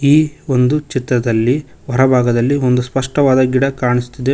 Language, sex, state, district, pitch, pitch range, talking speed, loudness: Kannada, male, Karnataka, Koppal, 130 Hz, 125-140 Hz, 125 wpm, -15 LUFS